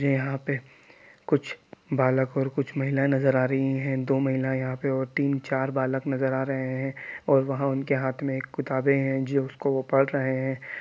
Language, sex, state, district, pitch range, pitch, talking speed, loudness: Hindi, male, Bihar, East Champaran, 130-135 Hz, 135 Hz, 210 wpm, -26 LUFS